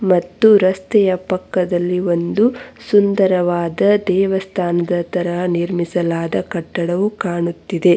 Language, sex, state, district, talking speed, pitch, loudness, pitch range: Kannada, female, Karnataka, Bangalore, 75 wpm, 180 Hz, -17 LUFS, 175-195 Hz